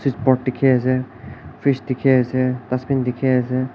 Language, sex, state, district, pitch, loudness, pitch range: Nagamese, male, Nagaland, Kohima, 130 Hz, -19 LUFS, 125-130 Hz